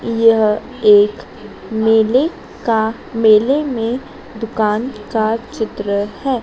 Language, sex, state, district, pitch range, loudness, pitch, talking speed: Hindi, female, Madhya Pradesh, Dhar, 220-255 Hz, -16 LUFS, 225 Hz, 95 wpm